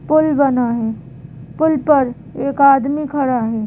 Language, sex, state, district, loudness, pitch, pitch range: Hindi, female, Madhya Pradesh, Bhopal, -16 LUFS, 270 Hz, 225-290 Hz